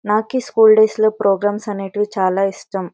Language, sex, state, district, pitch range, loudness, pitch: Telugu, female, Karnataka, Bellary, 195-220 Hz, -16 LUFS, 210 Hz